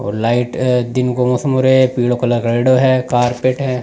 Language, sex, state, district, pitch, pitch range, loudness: Rajasthani, male, Rajasthan, Nagaur, 125 Hz, 120-130 Hz, -15 LUFS